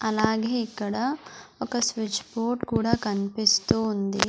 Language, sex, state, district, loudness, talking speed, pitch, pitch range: Telugu, female, Andhra Pradesh, Sri Satya Sai, -26 LUFS, 110 wpm, 220 Hz, 205-240 Hz